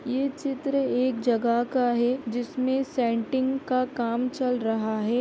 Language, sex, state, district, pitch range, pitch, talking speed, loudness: Hindi, female, Bihar, Madhepura, 235-265 Hz, 250 Hz, 150 wpm, -26 LUFS